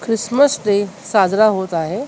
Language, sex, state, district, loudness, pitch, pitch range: Marathi, female, Maharashtra, Mumbai Suburban, -16 LUFS, 205 Hz, 190-230 Hz